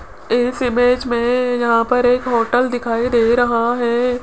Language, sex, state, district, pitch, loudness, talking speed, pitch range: Hindi, female, Rajasthan, Jaipur, 245 Hz, -16 LUFS, 155 wpm, 235-245 Hz